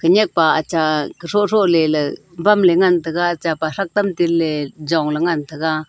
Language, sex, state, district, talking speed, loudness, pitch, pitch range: Wancho, female, Arunachal Pradesh, Longding, 155 wpm, -17 LUFS, 165 Hz, 155-180 Hz